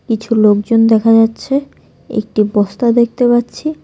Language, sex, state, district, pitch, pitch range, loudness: Bengali, female, West Bengal, Cooch Behar, 225 Hz, 220-245 Hz, -13 LUFS